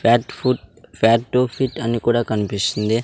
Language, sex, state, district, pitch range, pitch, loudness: Telugu, male, Andhra Pradesh, Sri Satya Sai, 110-120 Hz, 115 Hz, -20 LUFS